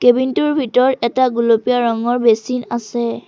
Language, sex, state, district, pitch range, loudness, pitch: Assamese, female, Assam, Sonitpur, 235-250 Hz, -16 LUFS, 245 Hz